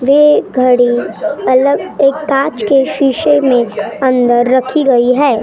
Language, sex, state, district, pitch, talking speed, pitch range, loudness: Hindi, female, Maharashtra, Gondia, 260 Hz, 135 wpm, 245-280 Hz, -11 LUFS